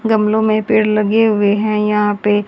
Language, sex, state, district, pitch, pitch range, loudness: Hindi, female, Haryana, Jhajjar, 215 Hz, 210-220 Hz, -14 LUFS